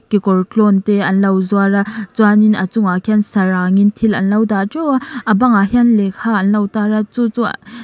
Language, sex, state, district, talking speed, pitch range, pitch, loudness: Mizo, female, Mizoram, Aizawl, 215 wpm, 195-220 Hz, 210 Hz, -14 LUFS